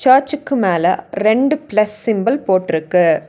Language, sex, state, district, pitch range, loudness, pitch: Tamil, female, Tamil Nadu, Nilgiris, 185-265 Hz, -16 LUFS, 215 Hz